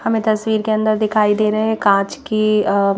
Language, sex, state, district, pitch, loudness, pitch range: Hindi, female, Madhya Pradesh, Bhopal, 215 Hz, -17 LUFS, 210-220 Hz